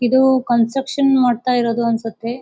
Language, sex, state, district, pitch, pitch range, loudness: Kannada, female, Karnataka, Dakshina Kannada, 245 Hz, 235-260 Hz, -17 LUFS